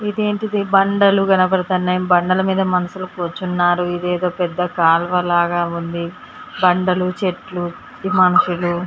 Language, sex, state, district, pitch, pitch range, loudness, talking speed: Telugu, female, Telangana, Karimnagar, 180 Hz, 175-190 Hz, -17 LUFS, 100 wpm